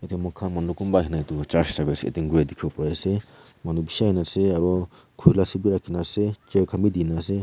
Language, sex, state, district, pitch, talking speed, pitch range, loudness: Nagamese, male, Nagaland, Kohima, 90 Hz, 260 wpm, 80-95 Hz, -24 LUFS